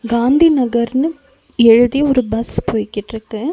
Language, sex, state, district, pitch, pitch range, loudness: Tamil, female, Tamil Nadu, Nilgiris, 240 Hz, 230-280 Hz, -15 LUFS